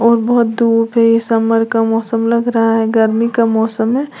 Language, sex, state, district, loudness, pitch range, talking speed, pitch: Hindi, female, Uttar Pradesh, Lalitpur, -13 LUFS, 225-235 Hz, 200 wpm, 230 Hz